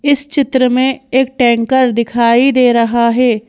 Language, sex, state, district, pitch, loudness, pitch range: Hindi, female, Madhya Pradesh, Bhopal, 250 Hz, -12 LUFS, 235-265 Hz